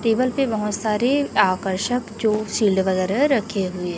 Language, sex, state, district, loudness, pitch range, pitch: Hindi, female, Chhattisgarh, Raipur, -21 LUFS, 190-245 Hz, 215 Hz